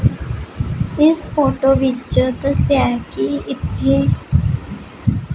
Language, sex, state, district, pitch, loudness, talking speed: Punjabi, female, Punjab, Pathankot, 255 Hz, -18 LUFS, 65 wpm